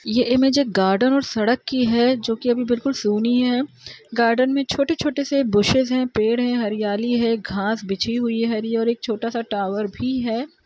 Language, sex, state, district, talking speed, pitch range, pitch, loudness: Hindi, female, Bihar, Araria, 100 wpm, 220-255 Hz, 235 Hz, -20 LUFS